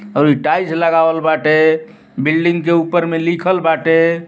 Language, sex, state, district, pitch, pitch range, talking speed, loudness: Bhojpuri, male, Uttar Pradesh, Ghazipur, 165 Hz, 160-170 Hz, 140 wpm, -14 LUFS